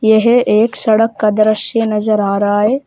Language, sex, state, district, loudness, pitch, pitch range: Hindi, male, Uttar Pradesh, Shamli, -12 LUFS, 215 Hz, 210-225 Hz